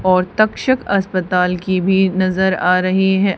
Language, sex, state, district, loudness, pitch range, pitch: Hindi, female, Haryana, Charkhi Dadri, -16 LUFS, 185-190 Hz, 190 Hz